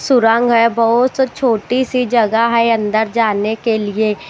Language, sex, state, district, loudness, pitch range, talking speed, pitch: Hindi, female, Haryana, Jhajjar, -14 LUFS, 220-245 Hz, 155 wpm, 230 Hz